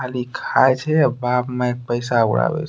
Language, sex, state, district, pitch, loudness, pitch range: Angika, male, Bihar, Bhagalpur, 125 Hz, -19 LUFS, 120-130 Hz